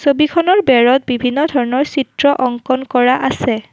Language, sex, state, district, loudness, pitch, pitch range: Assamese, female, Assam, Kamrup Metropolitan, -14 LUFS, 260 Hz, 250-285 Hz